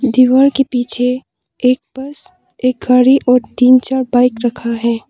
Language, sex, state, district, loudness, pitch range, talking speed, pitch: Hindi, female, Arunachal Pradesh, Papum Pare, -13 LUFS, 245-265 Hz, 155 wpm, 250 Hz